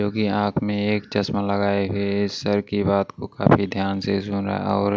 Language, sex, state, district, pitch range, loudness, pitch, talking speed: Hindi, male, Maharashtra, Washim, 100-105 Hz, -22 LUFS, 100 Hz, 215 wpm